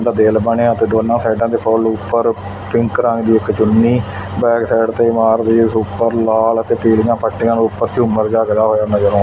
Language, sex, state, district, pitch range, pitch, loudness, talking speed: Punjabi, male, Punjab, Fazilka, 110-115 Hz, 115 Hz, -14 LUFS, 180 wpm